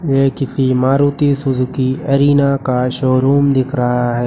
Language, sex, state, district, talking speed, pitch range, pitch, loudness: Hindi, male, Uttar Pradesh, Lucknow, 140 wpm, 130-140 Hz, 135 Hz, -14 LUFS